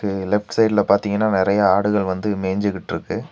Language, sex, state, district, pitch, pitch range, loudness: Tamil, male, Tamil Nadu, Nilgiris, 100 Hz, 95-105 Hz, -19 LUFS